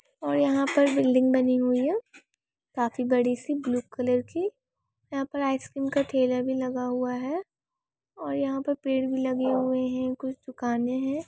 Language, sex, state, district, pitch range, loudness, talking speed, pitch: Bhojpuri, female, Uttar Pradesh, Gorakhpur, 255-280 Hz, -27 LUFS, 175 wpm, 260 Hz